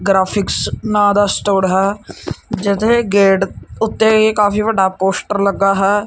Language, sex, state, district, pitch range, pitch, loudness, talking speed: Punjabi, male, Punjab, Kapurthala, 195-210 Hz, 200 Hz, -15 LUFS, 140 wpm